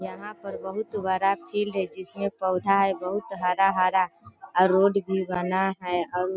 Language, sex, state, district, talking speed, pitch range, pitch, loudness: Hindi, female, Bihar, Sitamarhi, 170 wpm, 185-195 Hz, 190 Hz, -25 LUFS